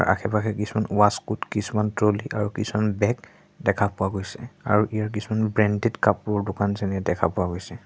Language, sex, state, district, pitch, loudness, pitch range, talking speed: Assamese, male, Assam, Sonitpur, 105 Hz, -24 LUFS, 100-110 Hz, 150 wpm